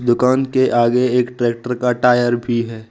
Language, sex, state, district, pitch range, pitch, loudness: Hindi, male, Arunachal Pradesh, Lower Dibang Valley, 120-125 Hz, 120 Hz, -16 LUFS